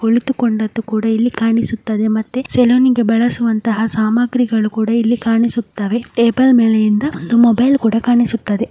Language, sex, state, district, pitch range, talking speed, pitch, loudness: Kannada, male, Karnataka, Mysore, 220-240 Hz, 200 wpm, 230 Hz, -15 LUFS